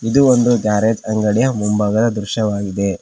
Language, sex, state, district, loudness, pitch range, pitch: Kannada, male, Karnataka, Koppal, -16 LUFS, 105-115 Hz, 110 Hz